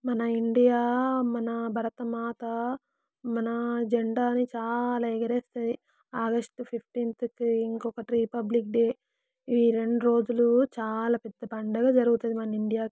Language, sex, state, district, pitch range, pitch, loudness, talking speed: Telugu, female, Telangana, Karimnagar, 230-240 Hz, 235 Hz, -28 LUFS, 110 wpm